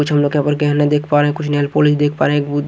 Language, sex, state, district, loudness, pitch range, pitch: Hindi, male, Haryana, Jhajjar, -15 LUFS, 145-150 Hz, 145 Hz